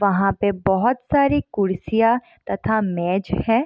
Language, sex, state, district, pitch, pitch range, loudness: Hindi, female, Bihar, East Champaran, 210 Hz, 190-245 Hz, -20 LUFS